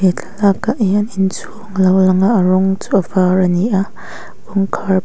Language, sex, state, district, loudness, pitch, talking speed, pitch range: Mizo, female, Mizoram, Aizawl, -15 LUFS, 190 Hz, 200 wpm, 185-200 Hz